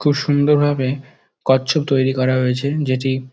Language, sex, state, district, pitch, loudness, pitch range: Bengali, male, West Bengal, Dakshin Dinajpur, 135 Hz, -18 LUFS, 130-145 Hz